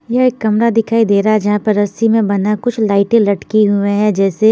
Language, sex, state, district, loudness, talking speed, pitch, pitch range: Hindi, female, Bihar, Patna, -13 LUFS, 225 wpm, 215 Hz, 205-225 Hz